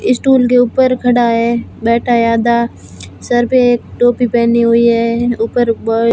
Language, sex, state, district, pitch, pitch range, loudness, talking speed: Hindi, female, Rajasthan, Barmer, 235 Hz, 230-245 Hz, -12 LUFS, 165 wpm